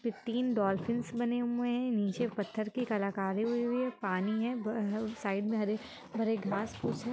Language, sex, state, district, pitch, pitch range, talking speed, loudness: Hindi, female, Bihar, Muzaffarpur, 225 Hz, 205-240 Hz, 175 wpm, -34 LUFS